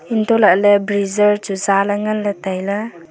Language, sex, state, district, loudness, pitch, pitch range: Wancho, female, Arunachal Pradesh, Longding, -16 LUFS, 205 Hz, 195-210 Hz